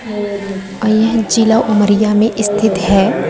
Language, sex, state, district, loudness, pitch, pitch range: Hindi, female, Madhya Pradesh, Umaria, -13 LUFS, 215 Hz, 205-220 Hz